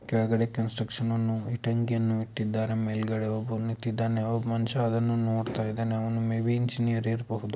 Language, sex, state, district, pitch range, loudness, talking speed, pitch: Kannada, male, Karnataka, Belgaum, 110-115 Hz, -29 LUFS, 135 wpm, 115 Hz